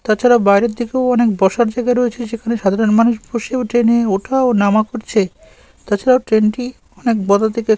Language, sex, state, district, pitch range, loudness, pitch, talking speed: Bengali, male, West Bengal, Malda, 215-245 Hz, -15 LUFS, 230 Hz, 160 wpm